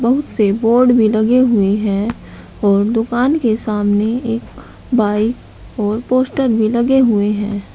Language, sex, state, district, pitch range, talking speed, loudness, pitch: Hindi, male, Uttar Pradesh, Shamli, 210-245 Hz, 145 wpm, -15 LUFS, 225 Hz